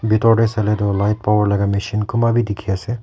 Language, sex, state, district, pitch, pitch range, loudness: Nagamese, male, Nagaland, Kohima, 105 Hz, 100-115 Hz, -17 LUFS